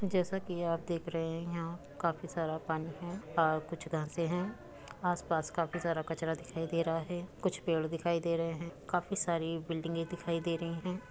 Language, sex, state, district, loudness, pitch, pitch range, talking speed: Hindi, female, Uttar Pradesh, Muzaffarnagar, -36 LUFS, 170 Hz, 165-175 Hz, 195 wpm